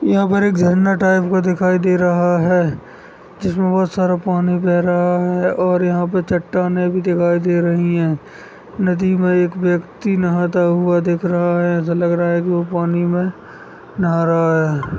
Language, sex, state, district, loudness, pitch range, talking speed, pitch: Hindi, male, Chhattisgarh, Sukma, -16 LUFS, 175-185 Hz, 185 wpm, 180 Hz